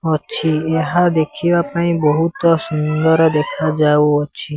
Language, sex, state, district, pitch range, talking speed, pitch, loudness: Odia, male, Odisha, Sambalpur, 150-165 Hz, 105 wpm, 160 Hz, -15 LUFS